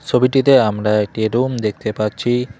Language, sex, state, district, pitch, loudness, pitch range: Bengali, male, West Bengal, Cooch Behar, 115 Hz, -17 LUFS, 105-125 Hz